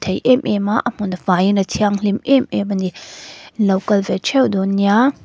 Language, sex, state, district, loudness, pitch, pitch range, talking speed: Mizo, female, Mizoram, Aizawl, -17 LUFS, 205 Hz, 195-230 Hz, 230 wpm